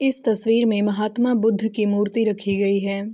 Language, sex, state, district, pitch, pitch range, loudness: Hindi, female, Bihar, Gopalganj, 215 Hz, 205-225 Hz, -21 LUFS